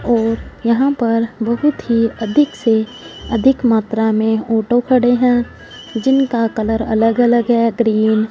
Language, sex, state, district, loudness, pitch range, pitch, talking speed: Hindi, female, Punjab, Fazilka, -15 LUFS, 225-245 Hz, 230 Hz, 145 wpm